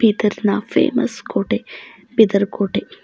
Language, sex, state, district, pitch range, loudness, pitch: Kannada, female, Karnataka, Bidar, 200-220 Hz, -18 LUFS, 205 Hz